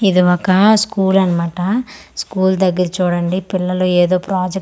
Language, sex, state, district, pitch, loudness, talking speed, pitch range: Telugu, female, Andhra Pradesh, Manyam, 185 Hz, -15 LUFS, 145 wpm, 180-195 Hz